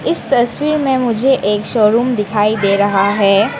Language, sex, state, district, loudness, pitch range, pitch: Hindi, female, Arunachal Pradesh, Lower Dibang Valley, -14 LUFS, 205-250 Hz, 215 Hz